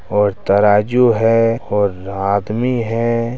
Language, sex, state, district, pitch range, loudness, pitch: Hindi, male, Bihar, Araria, 100-115 Hz, -16 LUFS, 110 Hz